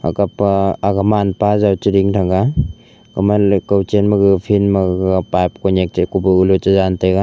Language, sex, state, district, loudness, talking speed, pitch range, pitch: Wancho, male, Arunachal Pradesh, Longding, -15 LUFS, 115 wpm, 95-100 Hz, 95 Hz